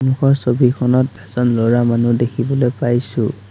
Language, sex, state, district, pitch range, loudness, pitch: Assamese, male, Assam, Sonitpur, 120-130 Hz, -16 LUFS, 125 Hz